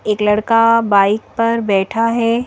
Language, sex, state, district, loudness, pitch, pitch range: Hindi, female, Madhya Pradesh, Bhopal, -14 LUFS, 230 Hz, 210-230 Hz